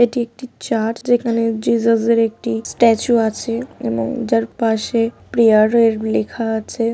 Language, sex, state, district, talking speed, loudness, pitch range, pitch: Bengali, female, West Bengal, Paschim Medinipur, 140 wpm, -17 LUFS, 220-235 Hz, 230 Hz